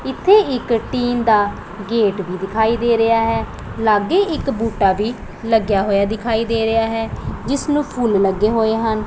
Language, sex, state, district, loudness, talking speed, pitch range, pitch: Punjabi, female, Punjab, Pathankot, -17 LUFS, 170 wpm, 210-235 Hz, 225 Hz